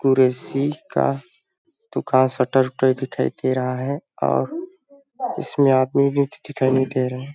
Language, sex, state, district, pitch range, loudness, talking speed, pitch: Hindi, male, Chhattisgarh, Balrampur, 130-160 Hz, -21 LUFS, 145 wpm, 135 Hz